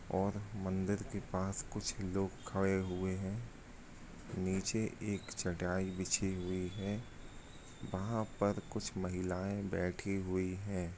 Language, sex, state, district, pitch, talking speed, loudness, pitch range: Hindi, male, Andhra Pradesh, Anantapur, 95 Hz, 125 wpm, -39 LUFS, 95-100 Hz